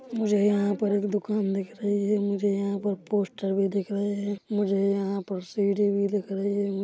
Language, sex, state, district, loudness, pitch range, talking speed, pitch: Hindi, male, Chhattisgarh, Korba, -27 LUFS, 195-205 Hz, 160 wpm, 200 Hz